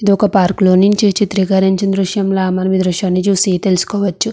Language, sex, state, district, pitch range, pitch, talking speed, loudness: Telugu, female, Andhra Pradesh, Chittoor, 185-200 Hz, 195 Hz, 165 wpm, -14 LUFS